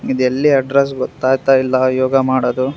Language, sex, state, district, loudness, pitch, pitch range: Kannada, male, Karnataka, Raichur, -15 LUFS, 130 Hz, 130-135 Hz